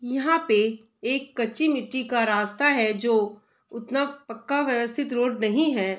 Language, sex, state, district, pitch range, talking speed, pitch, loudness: Hindi, female, Bihar, Saharsa, 220-280 Hz, 150 wpm, 240 Hz, -24 LUFS